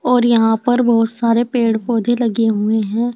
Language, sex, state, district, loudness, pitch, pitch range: Hindi, female, Uttar Pradesh, Saharanpur, -15 LUFS, 230 Hz, 225-240 Hz